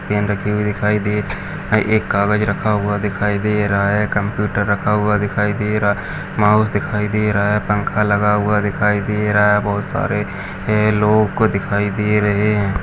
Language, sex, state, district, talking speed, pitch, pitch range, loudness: Hindi, male, Chhattisgarh, Jashpur, 190 wpm, 105 Hz, 100-105 Hz, -17 LUFS